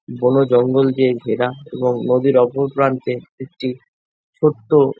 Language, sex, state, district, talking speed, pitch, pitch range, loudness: Bengali, male, West Bengal, Jhargram, 120 wpm, 130 Hz, 125-135 Hz, -17 LUFS